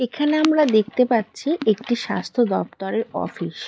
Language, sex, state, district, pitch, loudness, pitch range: Bengali, female, West Bengal, Dakshin Dinajpur, 240 Hz, -21 LUFS, 220-295 Hz